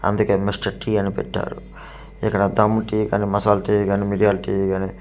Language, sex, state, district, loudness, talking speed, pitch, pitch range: Telugu, male, Andhra Pradesh, Manyam, -20 LUFS, 190 wpm, 100 Hz, 100-105 Hz